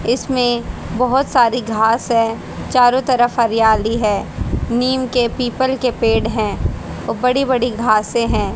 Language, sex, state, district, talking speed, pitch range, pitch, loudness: Hindi, female, Haryana, Jhajjar, 140 wpm, 225-250 Hz, 240 Hz, -17 LUFS